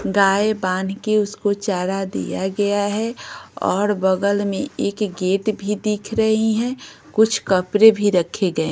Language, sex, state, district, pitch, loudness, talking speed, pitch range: Hindi, female, Bihar, West Champaran, 205 Hz, -20 LUFS, 150 wpm, 190-215 Hz